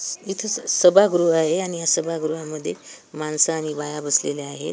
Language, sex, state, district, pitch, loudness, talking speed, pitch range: Marathi, female, Maharashtra, Washim, 160 Hz, -21 LUFS, 150 wpm, 155-180 Hz